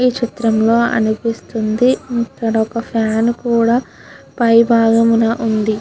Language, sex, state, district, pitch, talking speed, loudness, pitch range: Telugu, female, Andhra Pradesh, Guntur, 230 Hz, 105 wpm, -15 LUFS, 225-235 Hz